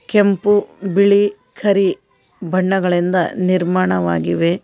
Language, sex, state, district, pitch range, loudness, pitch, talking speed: Kannada, female, Karnataka, Koppal, 175-200 Hz, -16 LUFS, 185 Hz, 65 wpm